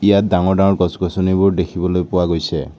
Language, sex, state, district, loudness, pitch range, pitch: Assamese, male, Assam, Kamrup Metropolitan, -16 LUFS, 90-95 Hz, 90 Hz